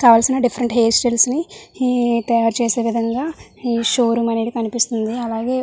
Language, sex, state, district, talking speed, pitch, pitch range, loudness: Telugu, female, Andhra Pradesh, Visakhapatnam, 160 wpm, 235 Hz, 230-250 Hz, -18 LUFS